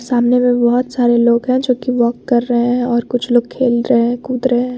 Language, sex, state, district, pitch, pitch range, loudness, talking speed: Hindi, female, Jharkhand, Garhwa, 245 Hz, 240-250 Hz, -15 LUFS, 265 wpm